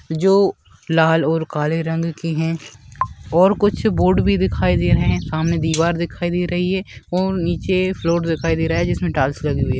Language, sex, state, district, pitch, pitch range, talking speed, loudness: Hindi, male, Rajasthan, Churu, 165 Hz, 145-175 Hz, 200 wpm, -19 LUFS